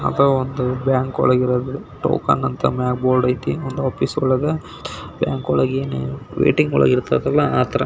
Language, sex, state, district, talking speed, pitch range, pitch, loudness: Kannada, male, Karnataka, Belgaum, 170 wpm, 125-135 Hz, 130 Hz, -19 LUFS